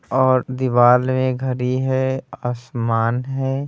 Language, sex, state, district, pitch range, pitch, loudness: Hindi, male, Bihar, Muzaffarpur, 125-130 Hz, 130 Hz, -19 LUFS